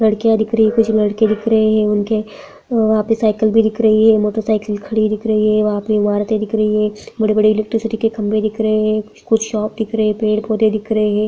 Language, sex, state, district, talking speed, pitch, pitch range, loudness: Hindi, female, Bihar, Purnia, 250 wpm, 215 Hz, 215-220 Hz, -16 LUFS